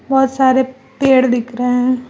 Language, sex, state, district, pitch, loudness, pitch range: Hindi, female, Uttar Pradesh, Lucknow, 260 Hz, -15 LUFS, 250-265 Hz